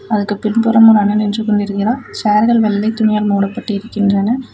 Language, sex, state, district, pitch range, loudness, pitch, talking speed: Tamil, female, Tamil Nadu, Namakkal, 205-225 Hz, -14 LUFS, 210 Hz, 130 wpm